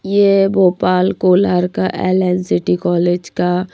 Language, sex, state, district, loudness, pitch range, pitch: Hindi, female, Madhya Pradesh, Bhopal, -15 LUFS, 180-195 Hz, 185 Hz